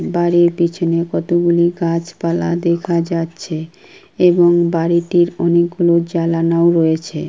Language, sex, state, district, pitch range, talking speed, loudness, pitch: Bengali, female, West Bengal, Kolkata, 170-175 Hz, 105 wpm, -15 LUFS, 170 Hz